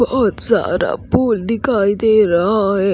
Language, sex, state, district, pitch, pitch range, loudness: Hindi, female, Haryana, Rohtak, 215 Hz, 200-230 Hz, -15 LUFS